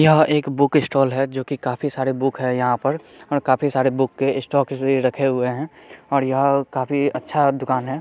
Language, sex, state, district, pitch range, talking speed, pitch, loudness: Hindi, male, Bihar, Saharsa, 130-140 Hz, 210 wpm, 135 Hz, -20 LUFS